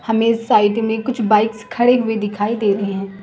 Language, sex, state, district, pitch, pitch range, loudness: Hindi, female, Chhattisgarh, Raipur, 220 Hz, 205-230 Hz, -17 LUFS